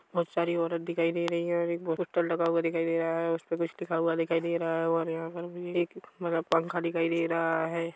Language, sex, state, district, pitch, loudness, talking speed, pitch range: Hindi, male, Chhattisgarh, Rajnandgaon, 165 Hz, -30 LUFS, 270 wpm, 165-170 Hz